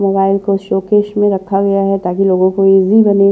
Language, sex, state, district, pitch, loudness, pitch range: Hindi, male, Maharashtra, Washim, 195 Hz, -12 LUFS, 195-200 Hz